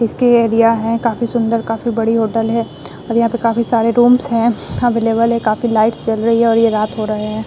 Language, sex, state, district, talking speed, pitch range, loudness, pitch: Hindi, female, Bihar, Vaishali, 235 wpm, 225-235 Hz, -15 LUFS, 230 Hz